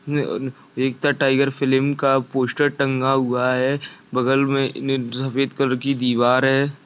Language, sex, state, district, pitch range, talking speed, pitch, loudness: Hindi, male, Bihar, Saharsa, 130-140 Hz, 140 wpm, 135 Hz, -20 LUFS